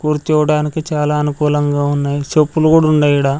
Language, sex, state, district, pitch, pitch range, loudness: Telugu, male, Andhra Pradesh, Sri Satya Sai, 150 Hz, 145-155 Hz, -14 LUFS